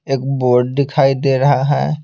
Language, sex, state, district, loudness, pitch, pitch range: Hindi, male, Bihar, Patna, -15 LUFS, 135 Hz, 135-140 Hz